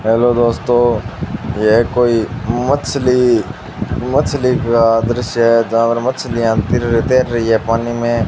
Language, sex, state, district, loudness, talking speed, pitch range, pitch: Hindi, male, Rajasthan, Bikaner, -15 LUFS, 125 wpm, 115-125 Hz, 120 Hz